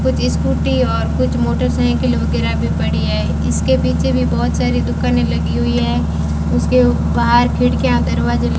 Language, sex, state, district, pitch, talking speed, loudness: Hindi, female, Rajasthan, Bikaner, 80 Hz, 160 wpm, -16 LUFS